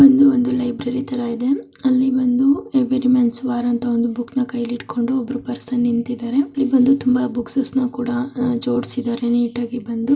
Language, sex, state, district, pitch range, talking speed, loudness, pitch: Kannada, female, Karnataka, Mysore, 240-260 Hz, 140 wpm, -19 LUFS, 250 Hz